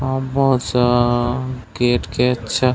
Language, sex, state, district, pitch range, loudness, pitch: Chhattisgarhi, male, Chhattisgarh, Raigarh, 120-130 Hz, -18 LUFS, 125 Hz